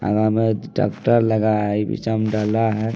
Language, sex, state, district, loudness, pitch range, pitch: Maithili, male, Bihar, Madhepura, -20 LUFS, 105-115 Hz, 110 Hz